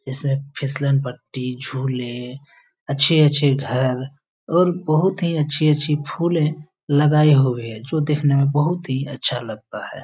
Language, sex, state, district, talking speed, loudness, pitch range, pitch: Hindi, male, Bihar, Lakhisarai, 155 wpm, -19 LUFS, 130-150 Hz, 140 Hz